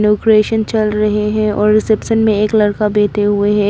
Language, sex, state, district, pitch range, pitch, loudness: Hindi, female, Arunachal Pradesh, Papum Pare, 210-215 Hz, 210 Hz, -13 LUFS